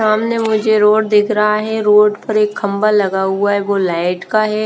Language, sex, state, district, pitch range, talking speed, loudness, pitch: Hindi, female, Bihar, West Champaran, 200-215 Hz, 220 wpm, -14 LUFS, 210 Hz